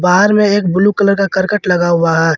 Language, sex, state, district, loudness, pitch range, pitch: Hindi, male, Jharkhand, Ranchi, -12 LUFS, 175-205 Hz, 190 Hz